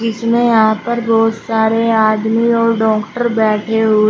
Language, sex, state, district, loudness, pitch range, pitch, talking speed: Hindi, female, Uttar Pradesh, Shamli, -14 LUFS, 220-230 Hz, 225 Hz, 145 wpm